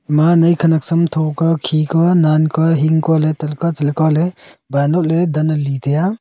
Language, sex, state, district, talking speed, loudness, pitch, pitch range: Wancho, male, Arunachal Pradesh, Longding, 175 wpm, -15 LUFS, 160 Hz, 155-165 Hz